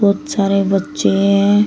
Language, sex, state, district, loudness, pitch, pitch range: Hindi, female, Uttar Pradesh, Shamli, -15 LUFS, 200 Hz, 195-205 Hz